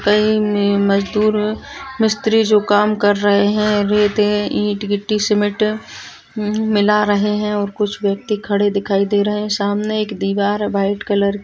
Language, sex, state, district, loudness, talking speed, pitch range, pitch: Hindi, female, Bihar, Kishanganj, -17 LUFS, 155 wpm, 205-210 Hz, 210 Hz